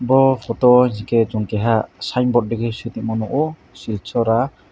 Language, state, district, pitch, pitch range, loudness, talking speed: Kokborok, Tripura, West Tripura, 115 Hz, 110-125 Hz, -19 LUFS, 165 wpm